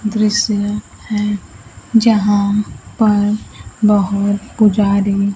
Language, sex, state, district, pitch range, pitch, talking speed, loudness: Hindi, female, Bihar, Kaimur, 200-215 Hz, 210 Hz, 65 wpm, -15 LUFS